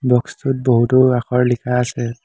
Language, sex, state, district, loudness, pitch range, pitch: Assamese, male, Assam, Hailakandi, -16 LUFS, 120-130 Hz, 125 Hz